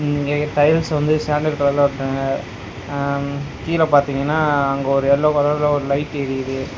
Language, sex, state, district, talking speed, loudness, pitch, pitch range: Tamil, male, Tamil Nadu, Nilgiris, 140 wpm, -19 LUFS, 145 Hz, 135-150 Hz